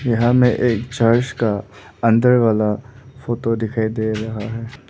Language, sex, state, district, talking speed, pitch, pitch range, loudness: Hindi, male, Arunachal Pradesh, Lower Dibang Valley, 145 wpm, 115 Hz, 110-120 Hz, -18 LUFS